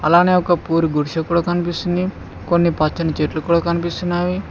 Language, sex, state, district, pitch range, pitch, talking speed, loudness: Telugu, male, Telangana, Mahabubabad, 160-175 Hz, 170 Hz, 145 wpm, -18 LUFS